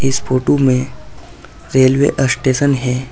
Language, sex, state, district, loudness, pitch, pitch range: Hindi, male, Uttar Pradesh, Saharanpur, -14 LUFS, 130 Hz, 130-135 Hz